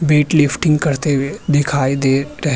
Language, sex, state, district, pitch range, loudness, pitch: Hindi, male, Uttar Pradesh, Hamirpur, 140-150 Hz, -16 LUFS, 145 Hz